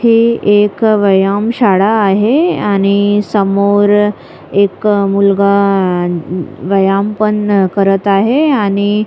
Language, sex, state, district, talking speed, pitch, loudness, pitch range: Marathi, female, Maharashtra, Sindhudurg, 95 wpm, 200 Hz, -11 LUFS, 195-210 Hz